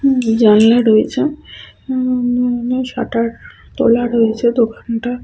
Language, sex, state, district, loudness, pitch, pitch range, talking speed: Bengali, female, West Bengal, Malda, -15 LUFS, 240 Hz, 230-250 Hz, 90 wpm